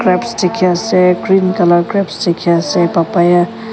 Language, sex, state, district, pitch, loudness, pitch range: Nagamese, female, Nagaland, Kohima, 180 Hz, -13 LUFS, 175-190 Hz